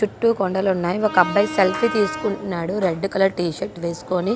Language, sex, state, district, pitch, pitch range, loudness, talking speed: Telugu, female, Andhra Pradesh, Guntur, 190 Hz, 175-205 Hz, -21 LUFS, 125 wpm